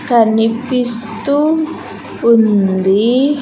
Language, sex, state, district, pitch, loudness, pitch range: Telugu, female, Andhra Pradesh, Sri Satya Sai, 235 Hz, -13 LUFS, 225-270 Hz